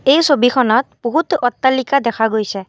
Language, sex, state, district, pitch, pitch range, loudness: Assamese, female, Assam, Kamrup Metropolitan, 250 Hz, 225-275 Hz, -15 LUFS